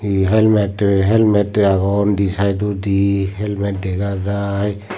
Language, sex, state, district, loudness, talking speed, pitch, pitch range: Chakma, male, Tripura, Unakoti, -17 LUFS, 130 wpm, 100 Hz, 100-105 Hz